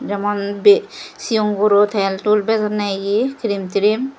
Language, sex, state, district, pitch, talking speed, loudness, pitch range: Chakma, female, Tripura, Dhalai, 210 Hz, 145 wpm, -17 LUFS, 205-245 Hz